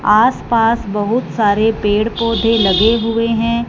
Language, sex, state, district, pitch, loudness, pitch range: Hindi, female, Punjab, Fazilka, 225 Hz, -14 LUFS, 210-230 Hz